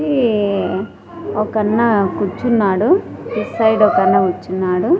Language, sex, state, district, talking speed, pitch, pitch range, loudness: Telugu, female, Andhra Pradesh, Sri Satya Sai, 70 wpm, 210 Hz, 190-235 Hz, -16 LUFS